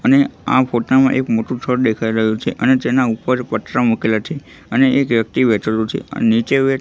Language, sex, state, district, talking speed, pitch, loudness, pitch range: Gujarati, male, Gujarat, Gandhinagar, 210 wpm, 120 Hz, -16 LUFS, 110-130 Hz